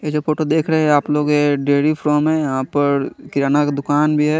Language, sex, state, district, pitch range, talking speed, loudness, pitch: Hindi, male, Chandigarh, Chandigarh, 145-150 Hz, 260 wpm, -17 LUFS, 150 Hz